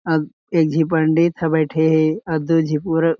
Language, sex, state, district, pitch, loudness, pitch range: Chhattisgarhi, male, Chhattisgarh, Jashpur, 160 Hz, -18 LUFS, 155-165 Hz